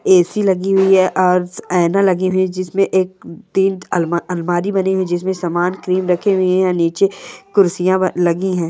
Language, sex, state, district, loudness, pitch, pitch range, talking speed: Angika, female, Bihar, Madhepura, -16 LUFS, 185 Hz, 180-190 Hz, 185 wpm